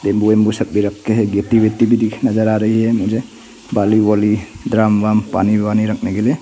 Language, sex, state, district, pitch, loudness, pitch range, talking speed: Hindi, male, Arunachal Pradesh, Papum Pare, 110 Hz, -15 LUFS, 105-110 Hz, 215 wpm